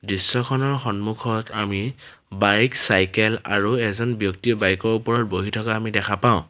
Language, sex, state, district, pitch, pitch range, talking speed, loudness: Assamese, male, Assam, Sonitpur, 110 Hz, 100-120 Hz, 150 wpm, -21 LUFS